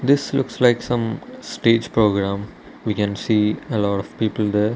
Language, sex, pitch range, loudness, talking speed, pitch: English, male, 105-120 Hz, -20 LUFS, 175 wpm, 110 Hz